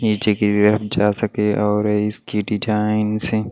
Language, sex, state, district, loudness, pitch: Hindi, male, Delhi, New Delhi, -19 LUFS, 105 Hz